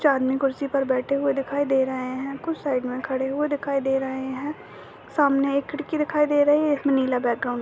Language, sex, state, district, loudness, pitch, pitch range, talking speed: Hindi, female, Uttarakhand, Uttarkashi, -24 LUFS, 275 Hz, 265-290 Hz, 230 wpm